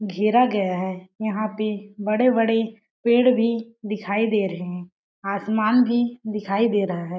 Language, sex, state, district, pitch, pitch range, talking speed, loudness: Hindi, female, Chhattisgarh, Balrampur, 215 Hz, 200-230 Hz, 150 wpm, -22 LUFS